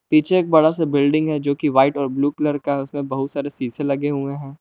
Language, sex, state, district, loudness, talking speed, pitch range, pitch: Hindi, male, Jharkhand, Palamu, -19 LUFS, 260 wpm, 140-150 Hz, 145 Hz